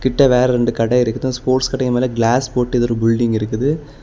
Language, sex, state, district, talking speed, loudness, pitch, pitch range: Tamil, male, Tamil Nadu, Kanyakumari, 225 wpm, -16 LUFS, 125 Hz, 115-130 Hz